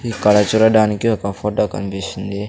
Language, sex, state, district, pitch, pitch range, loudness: Telugu, male, Andhra Pradesh, Sri Satya Sai, 105 Hz, 100-110 Hz, -17 LUFS